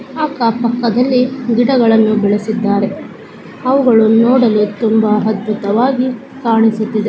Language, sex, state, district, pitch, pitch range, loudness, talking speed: Kannada, female, Karnataka, Belgaum, 230 Hz, 215-250 Hz, -13 LUFS, 85 wpm